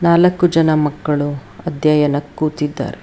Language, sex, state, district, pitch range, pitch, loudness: Kannada, female, Karnataka, Bangalore, 145-165 Hz, 150 Hz, -16 LUFS